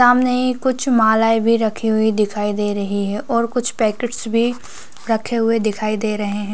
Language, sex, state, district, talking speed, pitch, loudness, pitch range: Hindi, female, Chhattisgarh, Raigarh, 195 wpm, 225 Hz, -18 LUFS, 210-240 Hz